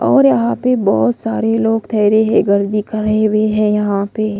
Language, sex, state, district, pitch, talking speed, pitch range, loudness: Hindi, female, Odisha, Malkangiri, 215 Hz, 205 wpm, 210-225 Hz, -14 LUFS